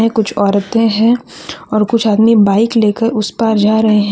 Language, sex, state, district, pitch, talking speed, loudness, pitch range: Hindi, female, Jharkhand, Deoghar, 220 Hz, 205 wpm, -12 LUFS, 210-230 Hz